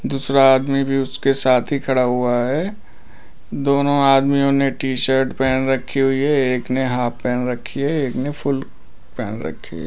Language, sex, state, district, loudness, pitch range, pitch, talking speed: Hindi, male, Uttar Pradesh, Lalitpur, -18 LUFS, 125-140 Hz, 135 Hz, 175 wpm